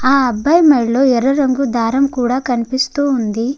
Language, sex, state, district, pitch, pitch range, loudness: Telugu, female, Andhra Pradesh, Guntur, 260 Hz, 245-275 Hz, -14 LUFS